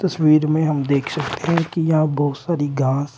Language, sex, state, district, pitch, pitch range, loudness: Hindi, male, Uttar Pradesh, Shamli, 155 Hz, 140-165 Hz, -19 LUFS